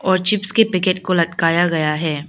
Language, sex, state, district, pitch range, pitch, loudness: Hindi, female, Arunachal Pradesh, Lower Dibang Valley, 165-190 Hz, 180 Hz, -16 LUFS